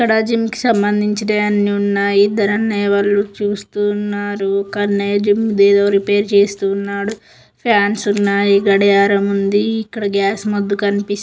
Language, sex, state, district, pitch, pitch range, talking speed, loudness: Telugu, female, Telangana, Karimnagar, 205 Hz, 200-210 Hz, 145 wpm, -15 LUFS